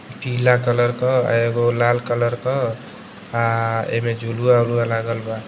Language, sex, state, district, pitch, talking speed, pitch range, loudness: Bhojpuri, male, Uttar Pradesh, Deoria, 120 Hz, 140 wpm, 115-125 Hz, -19 LUFS